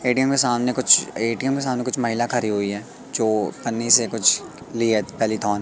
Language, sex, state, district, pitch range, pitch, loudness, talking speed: Hindi, male, Madhya Pradesh, Katni, 110-125 Hz, 115 Hz, -20 LUFS, 190 wpm